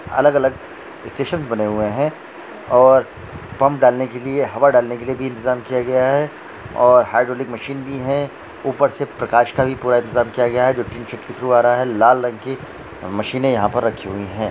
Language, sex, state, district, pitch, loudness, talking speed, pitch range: Hindi, male, Jharkhand, Jamtara, 125 Hz, -18 LUFS, 205 wpm, 120-135 Hz